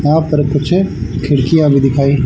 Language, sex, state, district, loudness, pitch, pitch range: Hindi, male, Haryana, Charkhi Dadri, -13 LUFS, 145 Hz, 140-155 Hz